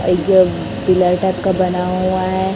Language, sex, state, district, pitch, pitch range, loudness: Hindi, female, Chhattisgarh, Raipur, 185 Hz, 180-190 Hz, -16 LUFS